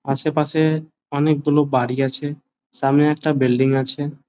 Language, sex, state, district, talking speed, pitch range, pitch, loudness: Bengali, male, West Bengal, Jalpaiguri, 125 wpm, 135-150 Hz, 145 Hz, -20 LUFS